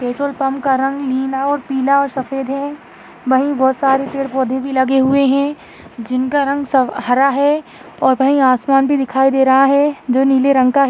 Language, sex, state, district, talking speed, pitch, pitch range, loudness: Hindi, female, Maharashtra, Aurangabad, 200 wpm, 270 Hz, 265-280 Hz, -15 LUFS